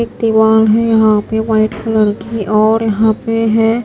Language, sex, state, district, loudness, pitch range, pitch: Hindi, female, Himachal Pradesh, Shimla, -12 LUFS, 215-225 Hz, 220 Hz